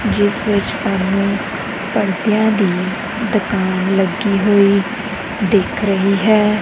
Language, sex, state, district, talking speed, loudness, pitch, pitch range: Punjabi, female, Punjab, Kapurthala, 100 wpm, -16 LUFS, 200 Hz, 195-210 Hz